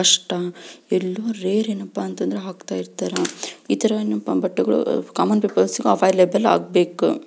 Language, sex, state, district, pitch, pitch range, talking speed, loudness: Kannada, female, Karnataka, Belgaum, 185 Hz, 165-205 Hz, 130 wpm, -21 LUFS